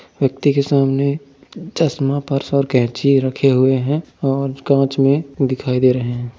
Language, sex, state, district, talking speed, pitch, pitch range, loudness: Hindi, male, Uttar Pradesh, Jyotiba Phule Nagar, 160 wpm, 135 Hz, 130-140 Hz, -17 LUFS